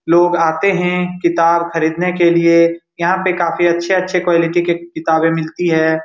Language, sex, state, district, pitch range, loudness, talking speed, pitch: Hindi, male, Bihar, Supaul, 165-180 Hz, -15 LUFS, 160 wpm, 170 Hz